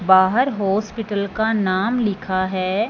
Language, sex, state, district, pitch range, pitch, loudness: Hindi, male, Punjab, Fazilka, 190-220 Hz, 200 Hz, -20 LUFS